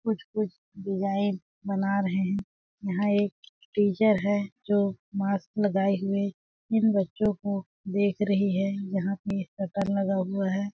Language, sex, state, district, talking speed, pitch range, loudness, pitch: Hindi, female, Chhattisgarh, Balrampur, 145 wpm, 195-205 Hz, -28 LUFS, 200 Hz